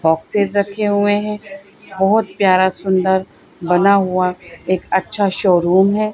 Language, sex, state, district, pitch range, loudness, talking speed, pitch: Hindi, female, Madhya Pradesh, Bhopal, 185-205 Hz, -16 LUFS, 125 wpm, 190 Hz